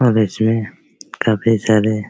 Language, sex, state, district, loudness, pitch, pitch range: Hindi, male, Bihar, Araria, -17 LUFS, 110 Hz, 105-115 Hz